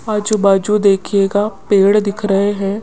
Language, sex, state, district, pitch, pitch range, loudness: Hindi, female, Rajasthan, Jaipur, 200 Hz, 195-210 Hz, -14 LUFS